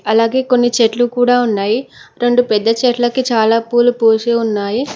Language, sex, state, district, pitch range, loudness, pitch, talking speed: Telugu, female, Telangana, Mahabubabad, 225-245 Hz, -14 LUFS, 240 Hz, 145 wpm